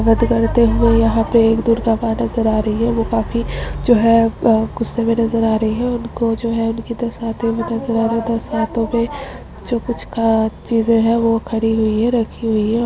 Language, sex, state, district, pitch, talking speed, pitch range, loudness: Hindi, female, Bihar, Samastipur, 230 Hz, 215 wpm, 225-235 Hz, -17 LUFS